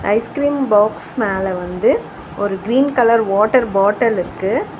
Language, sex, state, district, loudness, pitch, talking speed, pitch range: Tamil, female, Tamil Nadu, Chennai, -16 LUFS, 215 Hz, 140 wpm, 195-240 Hz